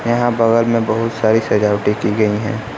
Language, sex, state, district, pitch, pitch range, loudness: Hindi, male, Uttar Pradesh, Lucknow, 110 Hz, 105-115 Hz, -16 LUFS